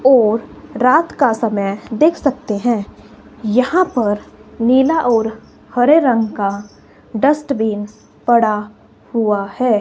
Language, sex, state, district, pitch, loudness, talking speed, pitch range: Hindi, female, Himachal Pradesh, Shimla, 230 Hz, -16 LUFS, 110 wpm, 215-265 Hz